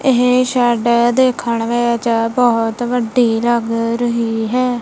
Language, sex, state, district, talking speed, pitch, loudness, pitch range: Punjabi, female, Punjab, Kapurthala, 110 wpm, 240 Hz, -15 LUFS, 230-245 Hz